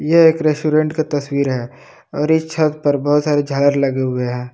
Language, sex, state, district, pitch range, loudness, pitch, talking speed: Hindi, male, Jharkhand, Palamu, 135-155 Hz, -17 LUFS, 145 Hz, 210 wpm